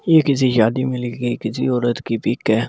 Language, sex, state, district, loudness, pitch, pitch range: Hindi, male, Delhi, New Delhi, -19 LUFS, 120 Hz, 115-130 Hz